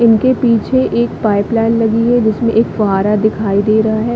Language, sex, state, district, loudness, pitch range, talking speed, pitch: Hindi, female, Chhattisgarh, Bilaspur, -13 LUFS, 215-235 Hz, 200 wpm, 225 Hz